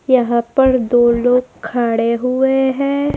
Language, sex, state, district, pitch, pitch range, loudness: Hindi, female, Madhya Pradesh, Dhar, 250 Hz, 235-265 Hz, -15 LUFS